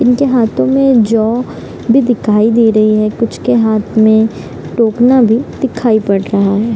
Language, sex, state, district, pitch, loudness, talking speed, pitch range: Hindi, female, Bihar, Gopalganj, 225 Hz, -11 LUFS, 170 wpm, 215-245 Hz